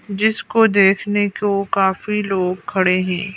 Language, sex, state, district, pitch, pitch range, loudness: Hindi, female, Madhya Pradesh, Bhopal, 195 Hz, 190-205 Hz, -17 LUFS